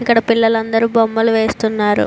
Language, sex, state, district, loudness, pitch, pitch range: Telugu, female, Andhra Pradesh, Chittoor, -15 LUFS, 225 Hz, 220-230 Hz